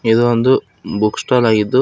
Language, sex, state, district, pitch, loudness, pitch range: Kannada, male, Karnataka, Bidar, 120 Hz, -15 LUFS, 110-125 Hz